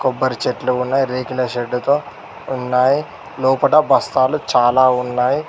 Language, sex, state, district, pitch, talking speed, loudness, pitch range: Telugu, male, Telangana, Mahabubabad, 130 Hz, 110 wpm, -17 LUFS, 125-135 Hz